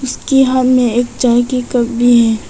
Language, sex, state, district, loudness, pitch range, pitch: Hindi, female, Arunachal Pradesh, Papum Pare, -12 LUFS, 240-255 Hz, 245 Hz